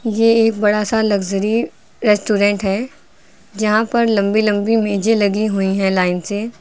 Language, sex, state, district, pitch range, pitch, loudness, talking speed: Hindi, female, Uttar Pradesh, Lucknow, 200-225 Hz, 210 Hz, -16 LUFS, 155 wpm